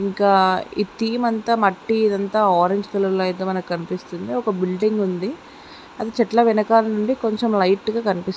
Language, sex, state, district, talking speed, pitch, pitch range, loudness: Telugu, female, Andhra Pradesh, Guntur, 135 wpm, 205 Hz, 190-225 Hz, -20 LUFS